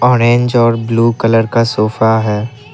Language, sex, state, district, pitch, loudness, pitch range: Hindi, male, Assam, Kamrup Metropolitan, 115 Hz, -12 LUFS, 110-120 Hz